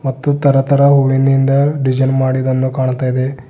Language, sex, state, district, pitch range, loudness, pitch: Kannada, male, Karnataka, Bidar, 130-140 Hz, -13 LUFS, 135 Hz